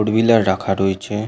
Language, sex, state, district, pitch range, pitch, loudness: Bengali, male, West Bengal, Purulia, 95-110 Hz, 105 Hz, -17 LUFS